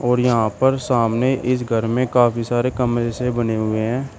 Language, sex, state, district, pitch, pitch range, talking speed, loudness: Hindi, male, Uttar Pradesh, Shamli, 120 Hz, 115-125 Hz, 200 wpm, -19 LUFS